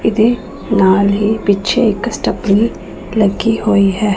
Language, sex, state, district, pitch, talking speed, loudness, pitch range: Punjabi, female, Punjab, Pathankot, 210 Hz, 130 wpm, -14 LUFS, 200-220 Hz